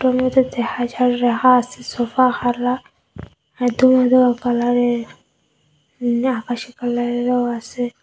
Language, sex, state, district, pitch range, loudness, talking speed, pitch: Bengali, female, Assam, Hailakandi, 240-255 Hz, -18 LUFS, 75 wpm, 245 Hz